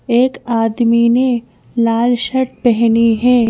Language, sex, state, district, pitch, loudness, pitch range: Hindi, female, Madhya Pradesh, Bhopal, 235 Hz, -14 LUFS, 230-245 Hz